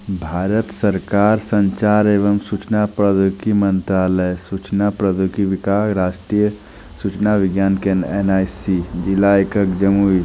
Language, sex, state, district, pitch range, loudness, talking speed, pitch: Hindi, male, Bihar, Jamui, 95-105 Hz, -17 LUFS, 115 wpm, 100 Hz